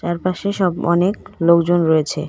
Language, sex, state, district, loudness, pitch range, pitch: Bengali, female, West Bengal, Cooch Behar, -17 LUFS, 165-185 Hz, 175 Hz